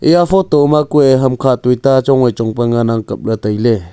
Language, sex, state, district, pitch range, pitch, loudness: Wancho, male, Arunachal Pradesh, Longding, 115-140 Hz, 125 Hz, -12 LUFS